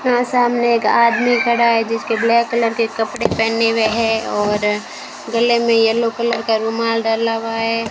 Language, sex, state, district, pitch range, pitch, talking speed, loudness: Hindi, female, Rajasthan, Bikaner, 225-235 Hz, 230 Hz, 175 wpm, -16 LUFS